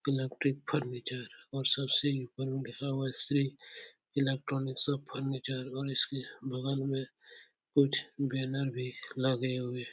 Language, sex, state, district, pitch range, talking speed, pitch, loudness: Hindi, male, Uttar Pradesh, Etah, 130-140 Hz, 115 wpm, 135 Hz, -33 LUFS